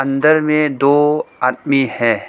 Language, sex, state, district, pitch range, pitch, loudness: Hindi, male, Arunachal Pradesh, Lower Dibang Valley, 130-150 Hz, 140 Hz, -15 LUFS